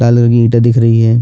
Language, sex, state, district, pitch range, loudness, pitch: Hindi, male, Chhattisgarh, Bastar, 115-120 Hz, -9 LUFS, 120 Hz